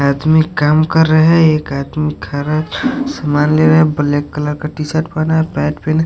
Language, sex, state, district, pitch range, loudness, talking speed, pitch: Hindi, male, Odisha, Sambalpur, 150-160 Hz, -14 LUFS, 210 wpm, 155 Hz